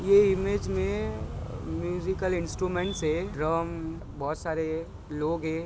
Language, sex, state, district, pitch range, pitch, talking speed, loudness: Marathi, male, Maharashtra, Sindhudurg, 110-180 Hz, 160 Hz, 115 wpm, -29 LUFS